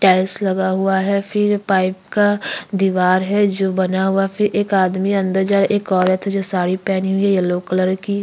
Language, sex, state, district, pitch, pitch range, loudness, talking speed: Hindi, female, Chhattisgarh, Kabirdham, 195 Hz, 185-200 Hz, -17 LUFS, 210 wpm